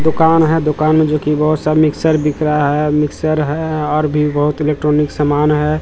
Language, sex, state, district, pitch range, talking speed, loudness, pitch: Hindi, male, Bihar, Katihar, 150-155 Hz, 205 wpm, -14 LUFS, 150 Hz